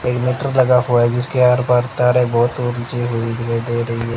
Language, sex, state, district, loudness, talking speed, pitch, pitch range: Hindi, male, Rajasthan, Bikaner, -17 LUFS, 215 wpm, 120 Hz, 120-125 Hz